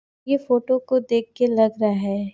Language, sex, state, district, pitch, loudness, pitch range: Hindi, female, Chhattisgarh, Sarguja, 235 Hz, -21 LUFS, 215-255 Hz